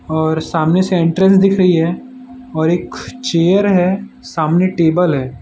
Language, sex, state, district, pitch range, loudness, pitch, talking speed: Hindi, male, Gujarat, Valsad, 165-195 Hz, -14 LUFS, 180 Hz, 155 wpm